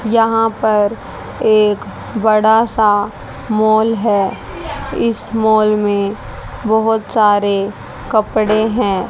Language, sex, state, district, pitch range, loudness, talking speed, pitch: Hindi, female, Haryana, Jhajjar, 210-225 Hz, -15 LUFS, 90 wpm, 215 Hz